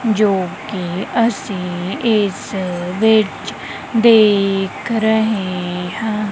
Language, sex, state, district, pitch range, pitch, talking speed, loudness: Punjabi, female, Punjab, Kapurthala, 185-220 Hz, 205 Hz, 75 wpm, -17 LUFS